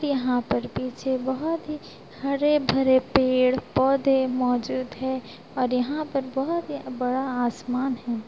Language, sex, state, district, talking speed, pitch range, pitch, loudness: Hindi, female, Bihar, Sitamarhi, 125 wpm, 250-275 Hz, 260 Hz, -25 LUFS